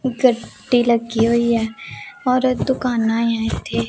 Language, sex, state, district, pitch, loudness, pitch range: Hindi, female, Punjab, Pathankot, 235 Hz, -19 LUFS, 225-255 Hz